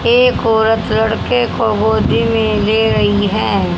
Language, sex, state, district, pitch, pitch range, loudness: Hindi, female, Haryana, Jhajjar, 220 Hz, 210-225 Hz, -14 LUFS